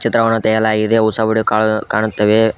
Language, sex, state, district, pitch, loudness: Kannada, male, Karnataka, Koppal, 110 Hz, -15 LUFS